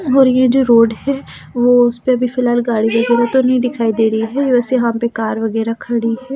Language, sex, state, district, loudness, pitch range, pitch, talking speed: Hindi, female, Delhi, New Delhi, -14 LUFS, 230-255 Hz, 240 Hz, 235 wpm